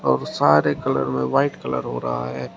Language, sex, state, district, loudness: Hindi, male, Uttar Pradesh, Shamli, -21 LUFS